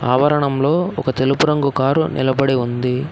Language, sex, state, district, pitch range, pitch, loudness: Telugu, male, Telangana, Hyderabad, 130-150 Hz, 135 Hz, -17 LUFS